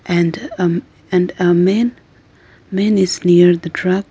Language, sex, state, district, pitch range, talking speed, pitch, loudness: English, female, Arunachal Pradesh, Lower Dibang Valley, 170-185 Hz, 145 wpm, 175 Hz, -15 LUFS